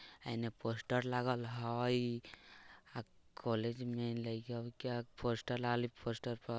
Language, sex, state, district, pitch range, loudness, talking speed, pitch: Bajjika, male, Bihar, Vaishali, 115-125 Hz, -40 LUFS, 110 wpm, 120 Hz